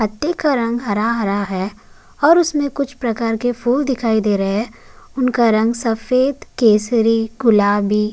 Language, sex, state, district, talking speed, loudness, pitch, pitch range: Hindi, male, Uttarakhand, Tehri Garhwal, 155 wpm, -17 LUFS, 230 Hz, 215-255 Hz